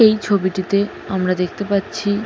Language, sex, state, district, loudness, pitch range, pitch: Bengali, female, West Bengal, Jalpaiguri, -19 LUFS, 185-205 Hz, 200 Hz